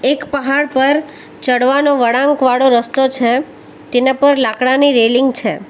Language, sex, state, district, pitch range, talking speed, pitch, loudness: Gujarati, female, Gujarat, Valsad, 250-280 Hz, 135 wpm, 265 Hz, -13 LUFS